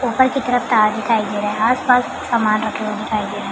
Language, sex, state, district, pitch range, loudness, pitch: Hindi, female, Bihar, Madhepura, 215-245 Hz, -18 LUFS, 220 Hz